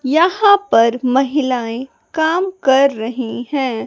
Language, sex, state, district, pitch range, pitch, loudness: Hindi, female, Bihar, West Champaran, 245-315 Hz, 265 Hz, -15 LUFS